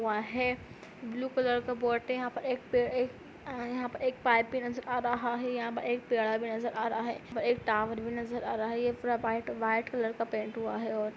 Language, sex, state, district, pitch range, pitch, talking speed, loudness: Hindi, female, Uttar Pradesh, Budaun, 225-245 Hz, 240 Hz, 260 wpm, -32 LUFS